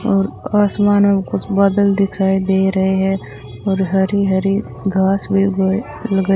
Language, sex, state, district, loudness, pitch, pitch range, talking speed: Hindi, female, Rajasthan, Bikaner, -16 LUFS, 195 Hz, 190-200 Hz, 150 wpm